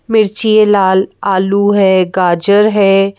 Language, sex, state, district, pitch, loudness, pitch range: Hindi, female, Madhya Pradesh, Bhopal, 200 Hz, -11 LUFS, 190-205 Hz